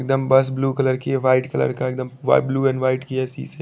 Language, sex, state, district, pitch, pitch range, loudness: Hindi, male, Chandigarh, Chandigarh, 130 Hz, 130-135 Hz, -20 LUFS